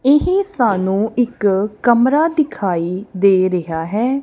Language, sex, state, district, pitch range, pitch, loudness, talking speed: Punjabi, female, Punjab, Kapurthala, 190-265 Hz, 215 Hz, -16 LUFS, 115 wpm